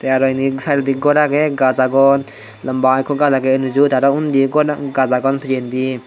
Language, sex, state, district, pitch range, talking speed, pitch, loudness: Chakma, male, Tripura, Dhalai, 130-140 Hz, 190 wpm, 135 Hz, -15 LUFS